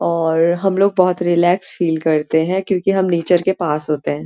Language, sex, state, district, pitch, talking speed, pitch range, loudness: Hindi, female, Uttarakhand, Uttarkashi, 175 Hz, 210 wpm, 160-190 Hz, -16 LUFS